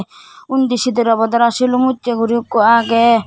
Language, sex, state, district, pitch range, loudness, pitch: Chakma, female, Tripura, Dhalai, 230-255 Hz, -14 LUFS, 235 Hz